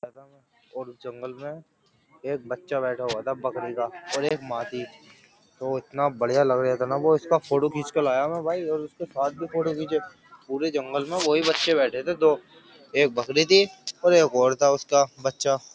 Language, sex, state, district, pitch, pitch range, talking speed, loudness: Hindi, male, Uttar Pradesh, Jyotiba Phule Nagar, 140 Hz, 130-160 Hz, 190 wpm, -24 LUFS